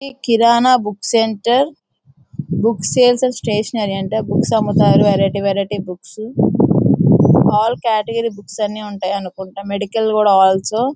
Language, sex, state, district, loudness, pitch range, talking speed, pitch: Telugu, female, Andhra Pradesh, Guntur, -15 LUFS, 195-230 Hz, 115 wpm, 210 Hz